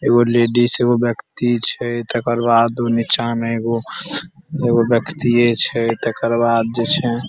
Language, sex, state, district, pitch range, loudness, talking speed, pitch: Maithili, male, Bihar, Saharsa, 115-120 Hz, -16 LUFS, 150 wpm, 120 Hz